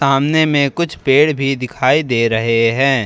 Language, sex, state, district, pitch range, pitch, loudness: Hindi, male, Jharkhand, Ranchi, 120-145 Hz, 135 Hz, -14 LUFS